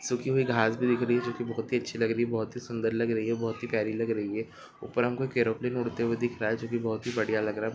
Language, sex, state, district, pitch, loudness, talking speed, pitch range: Hindi, male, Chhattisgarh, Bastar, 115 Hz, -29 LUFS, 335 wpm, 110-120 Hz